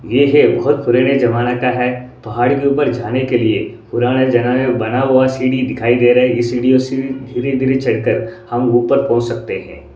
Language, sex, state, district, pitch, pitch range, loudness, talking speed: Hindi, male, Odisha, Sambalpur, 125 Hz, 120-130 Hz, -15 LUFS, 200 wpm